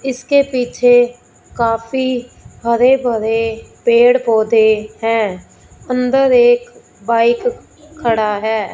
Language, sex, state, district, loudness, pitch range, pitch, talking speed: Hindi, female, Punjab, Fazilka, -14 LUFS, 225-260 Hz, 240 Hz, 90 wpm